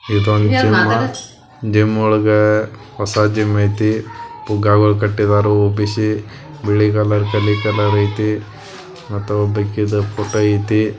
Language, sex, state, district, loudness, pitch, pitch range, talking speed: Kannada, male, Karnataka, Belgaum, -16 LUFS, 105 Hz, 105-110 Hz, 105 wpm